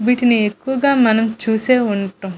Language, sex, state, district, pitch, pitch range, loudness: Telugu, female, Andhra Pradesh, Visakhapatnam, 225 Hz, 210-250 Hz, -16 LUFS